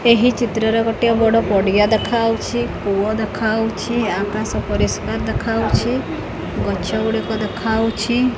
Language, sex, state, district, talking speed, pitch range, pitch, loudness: Odia, female, Odisha, Khordha, 105 wpm, 220-235 Hz, 225 Hz, -18 LUFS